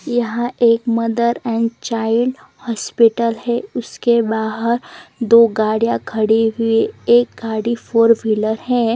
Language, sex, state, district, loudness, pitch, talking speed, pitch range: Hindi, female, Chandigarh, Chandigarh, -17 LUFS, 230 Hz, 125 wpm, 225-235 Hz